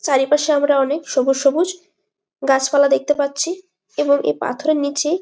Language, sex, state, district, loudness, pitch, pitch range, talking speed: Bengali, female, West Bengal, Malda, -18 LUFS, 290 Hz, 275-310 Hz, 140 wpm